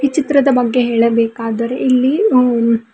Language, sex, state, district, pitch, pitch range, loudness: Kannada, female, Karnataka, Bidar, 245 Hz, 230-270 Hz, -14 LUFS